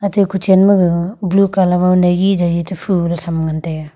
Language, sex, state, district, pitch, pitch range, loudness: Wancho, female, Arunachal Pradesh, Longding, 180 Hz, 170-190 Hz, -14 LUFS